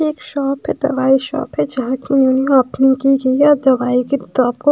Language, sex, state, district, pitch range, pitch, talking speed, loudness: Hindi, female, Bihar, West Champaran, 260-280 Hz, 270 Hz, 140 wpm, -15 LUFS